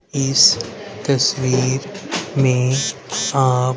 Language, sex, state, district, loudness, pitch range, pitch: Hindi, male, Haryana, Rohtak, -17 LUFS, 130-140 Hz, 135 Hz